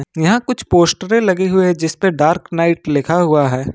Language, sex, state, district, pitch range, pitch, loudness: Hindi, male, Jharkhand, Ranchi, 155-190 Hz, 170 Hz, -15 LUFS